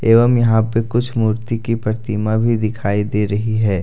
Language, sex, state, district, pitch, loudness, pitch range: Hindi, male, Jharkhand, Deoghar, 110 Hz, -17 LUFS, 105-115 Hz